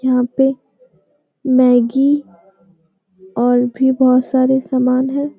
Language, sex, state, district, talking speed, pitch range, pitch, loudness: Hindi, female, Bihar, Jamui, 100 wpm, 245-265 Hz, 255 Hz, -15 LUFS